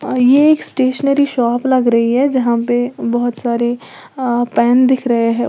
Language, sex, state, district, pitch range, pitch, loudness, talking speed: Hindi, female, Uttar Pradesh, Lalitpur, 240-260 Hz, 245 Hz, -14 LUFS, 185 wpm